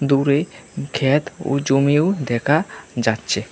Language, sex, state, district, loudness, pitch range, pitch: Bengali, male, Tripura, West Tripura, -19 LUFS, 135-155 Hz, 140 Hz